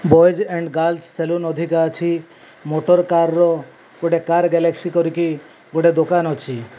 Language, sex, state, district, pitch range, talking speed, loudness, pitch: Odia, male, Odisha, Malkangiri, 160-170 Hz, 150 wpm, -18 LUFS, 170 Hz